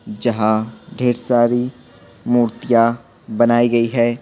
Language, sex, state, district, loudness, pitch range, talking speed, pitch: Hindi, male, Bihar, Patna, -17 LUFS, 115-120 Hz, 100 wpm, 120 Hz